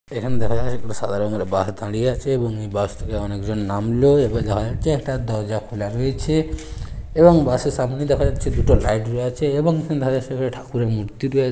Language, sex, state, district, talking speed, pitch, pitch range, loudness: Bengali, male, West Bengal, Paschim Medinipur, 195 wpm, 120 Hz, 105-135 Hz, -21 LUFS